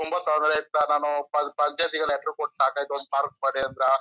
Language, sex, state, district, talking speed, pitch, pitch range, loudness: Kannada, male, Karnataka, Chamarajanagar, 135 wpm, 150 Hz, 140-155 Hz, -25 LUFS